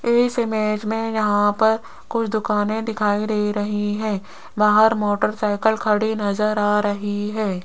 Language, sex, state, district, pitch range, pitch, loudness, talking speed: Hindi, female, Rajasthan, Jaipur, 205-220 Hz, 210 Hz, -20 LUFS, 140 wpm